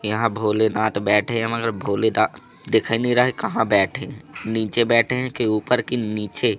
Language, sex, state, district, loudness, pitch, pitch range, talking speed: Hindi, male, Madhya Pradesh, Katni, -21 LUFS, 115 Hz, 105-120 Hz, 190 wpm